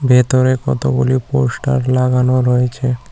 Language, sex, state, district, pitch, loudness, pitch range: Bengali, male, West Bengal, Cooch Behar, 125 Hz, -15 LUFS, 125-130 Hz